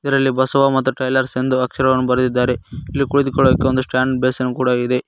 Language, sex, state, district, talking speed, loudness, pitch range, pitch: Kannada, male, Karnataka, Koppal, 165 wpm, -17 LUFS, 125-135 Hz, 130 Hz